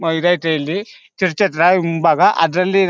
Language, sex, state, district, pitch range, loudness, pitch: Kannada, male, Karnataka, Mysore, 165-185 Hz, -16 LUFS, 175 Hz